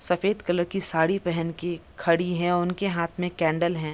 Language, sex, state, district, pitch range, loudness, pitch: Hindi, female, Bihar, Madhepura, 170-180 Hz, -26 LUFS, 175 Hz